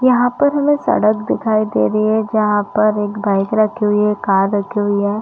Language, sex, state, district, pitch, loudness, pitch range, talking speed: Hindi, female, Chhattisgarh, Rajnandgaon, 210 Hz, -16 LUFS, 205-220 Hz, 220 wpm